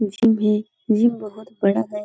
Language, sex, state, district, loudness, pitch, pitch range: Hindi, female, Uttar Pradesh, Etah, -20 LUFS, 215 Hz, 210-225 Hz